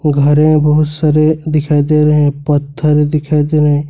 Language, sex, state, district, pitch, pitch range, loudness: Hindi, male, Jharkhand, Ranchi, 150 Hz, 145-155 Hz, -12 LUFS